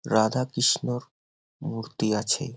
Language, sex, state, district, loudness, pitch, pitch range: Bengali, male, West Bengal, Jhargram, -26 LUFS, 120 Hz, 110-125 Hz